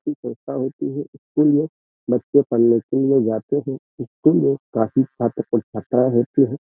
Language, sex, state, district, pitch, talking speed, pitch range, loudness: Hindi, male, Uttar Pradesh, Jyotiba Phule Nagar, 135 Hz, 120 wpm, 120-140 Hz, -20 LUFS